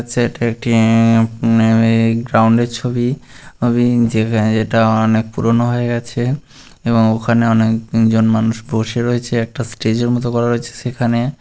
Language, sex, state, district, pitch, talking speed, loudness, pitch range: Bengali, male, West Bengal, Malda, 115 Hz, 135 wpm, -15 LUFS, 115-120 Hz